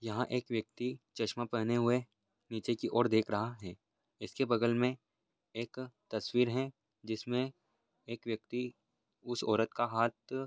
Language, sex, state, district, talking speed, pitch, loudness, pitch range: Hindi, male, Maharashtra, Sindhudurg, 145 wpm, 120 Hz, -35 LUFS, 110-125 Hz